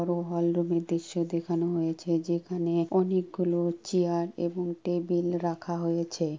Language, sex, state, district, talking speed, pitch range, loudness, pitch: Bengali, male, West Bengal, Purulia, 130 wpm, 170-175 Hz, -29 LUFS, 170 Hz